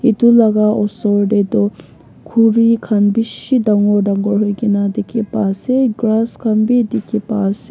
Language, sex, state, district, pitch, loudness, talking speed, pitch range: Nagamese, female, Nagaland, Kohima, 215 Hz, -15 LUFS, 165 wpm, 205-230 Hz